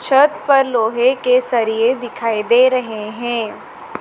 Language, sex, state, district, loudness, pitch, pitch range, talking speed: Hindi, female, Madhya Pradesh, Dhar, -16 LUFS, 240 Hz, 225-255 Hz, 135 wpm